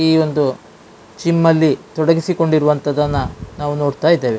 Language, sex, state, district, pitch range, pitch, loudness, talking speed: Kannada, male, Karnataka, Dakshina Kannada, 145-165 Hz, 150 Hz, -16 LUFS, 95 wpm